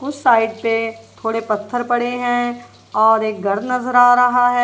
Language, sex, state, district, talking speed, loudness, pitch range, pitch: Hindi, female, Punjab, Kapurthala, 180 wpm, -17 LUFS, 225-245 Hz, 240 Hz